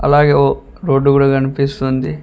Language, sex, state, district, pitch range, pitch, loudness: Telugu, male, Telangana, Mahabubabad, 135-145 Hz, 140 Hz, -14 LUFS